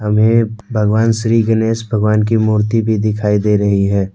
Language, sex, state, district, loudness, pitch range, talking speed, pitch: Hindi, male, Jharkhand, Deoghar, -14 LUFS, 105-115 Hz, 160 wpm, 110 Hz